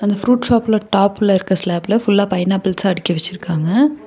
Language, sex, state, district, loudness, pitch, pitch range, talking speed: Tamil, female, Tamil Nadu, Nilgiris, -16 LUFS, 200 Hz, 185-215 Hz, 190 wpm